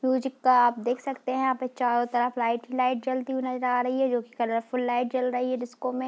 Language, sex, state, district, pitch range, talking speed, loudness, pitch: Hindi, female, Bihar, Darbhanga, 245-260 Hz, 275 wpm, -27 LUFS, 250 Hz